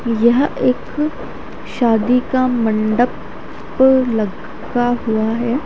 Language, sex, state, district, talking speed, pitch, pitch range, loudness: Hindi, female, Haryana, Charkhi Dadri, 95 wpm, 245 Hz, 225-255 Hz, -17 LUFS